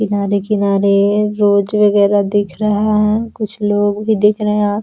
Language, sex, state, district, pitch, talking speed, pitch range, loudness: Hindi, female, Bihar, Araria, 205 Hz, 185 wpm, 205-210 Hz, -14 LUFS